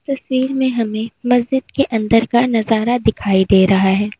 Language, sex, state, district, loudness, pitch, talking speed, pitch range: Hindi, female, Uttar Pradesh, Lalitpur, -16 LUFS, 230 Hz, 170 wpm, 210-255 Hz